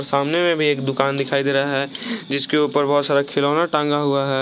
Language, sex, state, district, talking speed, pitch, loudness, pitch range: Hindi, male, Jharkhand, Garhwa, 230 wpm, 140 Hz, -19 LUFS, 140-150 Hz